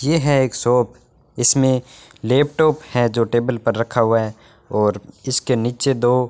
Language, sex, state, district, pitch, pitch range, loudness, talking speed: Hindi, male, Rajasthan, Bikaner, 125 Hz, 120-135 Hz, -18 LUFS, 170 wpm